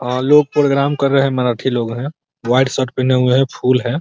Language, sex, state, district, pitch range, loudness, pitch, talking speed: Hindi, male, Bihar, Muzaffarpur, 125-140 Hz, -15 LUFS, 130 Hz, 285 wpm